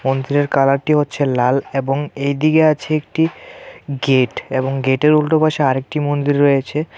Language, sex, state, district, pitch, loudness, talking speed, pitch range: Bengali, male, Tripura, West Tripura, 140 Hz, -16 LUFS, 130 wpm, 135-150 Hz